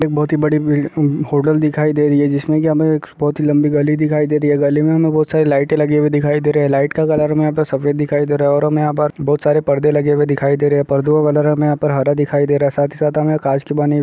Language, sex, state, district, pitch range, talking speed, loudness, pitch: Hindi, male, Bihar, Saharsa, 145-150 Hz, 315 wpm, -15 LUFS, 150 Hz